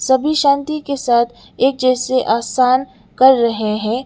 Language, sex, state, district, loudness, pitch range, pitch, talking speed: Hindi, female, Sikkim, Gangtok, -15 LUFS, 235-270 Hz, 255 Hz, 150 wpm